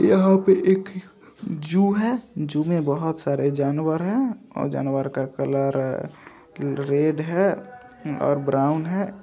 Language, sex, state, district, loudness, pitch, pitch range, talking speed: Hindi, male, Bihar, Saharsa, -22 LUFS, 160 Hz, 140-195 Hz, 130 wpm